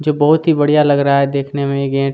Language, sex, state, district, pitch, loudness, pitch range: Hindi, male, Chhattisgarh, Kabirdham, 140 Hz, -14 LUFS, 140-150 Hz